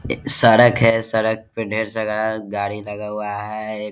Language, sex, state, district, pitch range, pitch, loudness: Hindi, male, Bihar, Vaishali, 105-110 Hz, 110 Hz, -18 LUFS